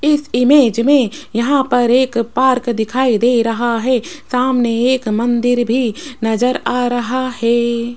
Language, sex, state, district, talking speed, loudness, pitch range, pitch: Hindi, female, Rajasthan, Jaipur, 145 wpm, -15 LUFS, 235-255 Hz, 245 Hz